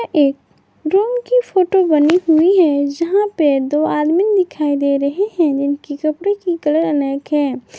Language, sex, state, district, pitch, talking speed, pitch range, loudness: Hindi, female, Jharkhand, Garhwa, 315 Hz, 160 wpm, 285-380 Hz, -16 LUFS